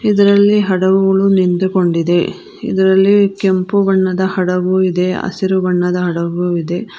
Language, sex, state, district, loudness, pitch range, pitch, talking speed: Kannada, female, Karnataka, Bangalore, -14 LUFS, 180-195 Hz, 190 Hz, 105 wpm